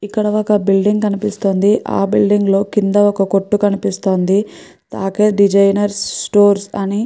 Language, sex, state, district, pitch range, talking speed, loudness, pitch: Telugu, female, Andhra Pradesh, Guntur, 195-205 Hz, 125 wpm, -14 LUFS, 200 Hz